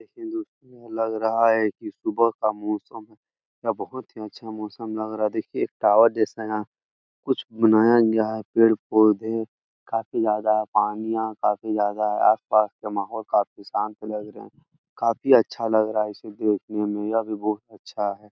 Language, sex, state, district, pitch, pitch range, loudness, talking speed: Hindi, male, Bihar, Jahanabad, 110 Hz, 105-115 Hz, -23 LUFS, 205 wpm